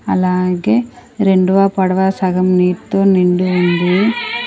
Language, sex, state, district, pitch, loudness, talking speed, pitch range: Telugu, female, Andhra Pradesh, Sri Satya Sai, 190 Hz, -14 LUFS, 95 wpm, 180-195 Hz